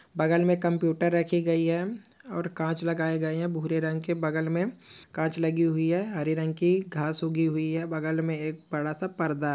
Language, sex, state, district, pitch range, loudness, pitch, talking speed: Hindi, male, West Bengal, Malda, 160-170 Hz, -28 LUFS, 160 Hz, 205 wpm